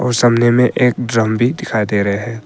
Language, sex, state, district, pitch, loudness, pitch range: Hindi, male, Arunachal Pradesh, Papum Pare, 120 Hz, -15 LUFS, 110-125 Hz